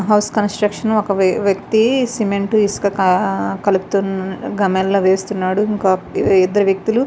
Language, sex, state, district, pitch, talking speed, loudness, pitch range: Telugu, female, Andhra Pradesh, Visakhapatnam, 200 Hz, 110 wpm, -16 LUFS, 190-210 Hz